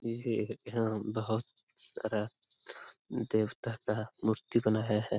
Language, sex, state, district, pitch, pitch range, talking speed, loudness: Hindi, male, Bihar, Jamui, 110 Hz, 110-115 Hz, 105 wpm, -34 LUFS